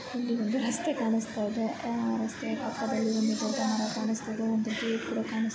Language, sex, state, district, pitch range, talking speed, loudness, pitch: Kannada, female, Karnataka, Bellary, 220-235 Hz, 130 wpm, -30 LUFS, 225 Hz